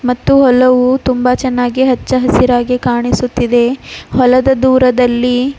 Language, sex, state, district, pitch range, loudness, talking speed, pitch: Kannada, female, Karnataka, Bidar, 245-255 Hz, -11 LUFS, 95 wpm, 250 Hz